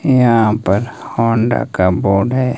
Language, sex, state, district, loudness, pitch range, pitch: Hindi, male, Himachal Pradesh, Shimla, -15 LUFS, 100-125 Hz, 115 Hz